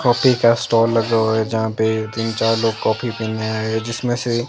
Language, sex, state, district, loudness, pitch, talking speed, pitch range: Hindi, female, Himachal Pradesh, Shimla, -18 LUFS, 115 Hz, 225 wpm, 110-115 Hz